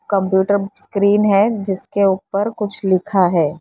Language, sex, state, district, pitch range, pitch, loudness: Hindi, female, Maharashtra, Mumbai Suburban, 190-205 Hz, 200 Hz, -17 LUFS